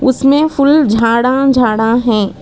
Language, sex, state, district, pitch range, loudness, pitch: Hindi, female, Karnataka, Bangalore, 230-275 Hz, -11 LUFS, 255 Hz